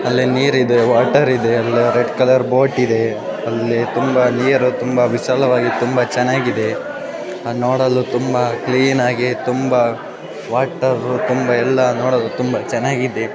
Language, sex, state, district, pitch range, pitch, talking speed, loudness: Kannada, male, Karnataka, Shimoga, 120-130 Hz, 125 Hz, 95 wpm, -16 LUFS